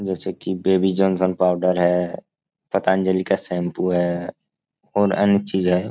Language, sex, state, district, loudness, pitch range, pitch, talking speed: Hindi, male, Bihar, Supaul, -20 LUFS, 90-95 Hz, 95 Hz, 140 wpm